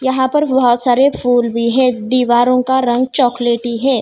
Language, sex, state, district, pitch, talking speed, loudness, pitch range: Hindi, female, Maharashtra, Mumbai Suburban, 250 Hz, 180 wpm, -14 LUFS, 240-260 Hz